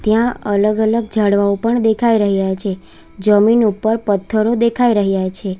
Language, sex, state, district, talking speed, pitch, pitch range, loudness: Gujarati, female, Gujarat, Valsad, 140 wpm, 215 Hz, 200-225 Hz, -15 LUFS